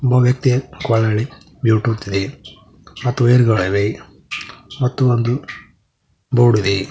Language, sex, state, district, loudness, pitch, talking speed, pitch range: Kannada, male, Karnataka, Koppal, -17 LUFS, 115 Hz, 95 wpm, 105-125 Hz